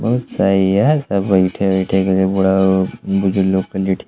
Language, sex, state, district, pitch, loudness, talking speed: Hindi, male, Uttar Pradesh, Varanasi, 95 Hz, -16 LUFS, 160 wpm